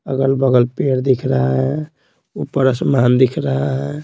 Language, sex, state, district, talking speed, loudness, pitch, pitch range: Hindi, male, Bihar, Patna, 150 wpm, -16 LUFS, 135 Hz, 125-140 Hz